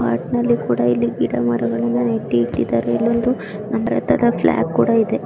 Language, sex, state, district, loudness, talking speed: Kannada, female, Karnataka, Dakshina Kannada, -18 LUFS, 70 wpm